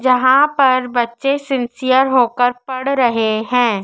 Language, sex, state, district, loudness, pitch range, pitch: Hindi, female, Madhya Pradesh, Dhar, -15 LUFS, 240-265 Hz, 255 Hz